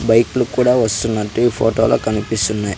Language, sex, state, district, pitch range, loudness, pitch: Telugu, male, Andhra Pradesh, Sri Satya Sai, 110-120 Hz, -16 LUFS, 115 Hz